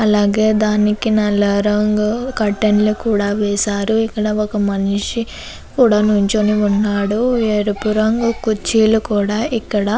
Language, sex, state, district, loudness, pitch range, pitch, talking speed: Telugu, female, Andhra Pradesh, Chittoor, -16 LUFS, 205-220 Hz, 210 Hz, 120 wpm